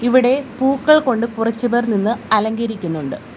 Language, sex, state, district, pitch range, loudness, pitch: Malayalam, female, Kerala, Kollam, 220-255 Hz, -17 LUFS, 235 Hz